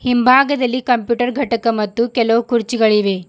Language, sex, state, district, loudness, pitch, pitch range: Kannada, female, Karnataka, Bidar, -16 LUFS, 235 Hz, 225-250 Hz